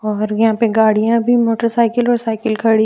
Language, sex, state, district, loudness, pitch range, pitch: Hindi, female, Jharkhand, Deoghar, -15 LUFS, 220-235 Hz, 225 Hz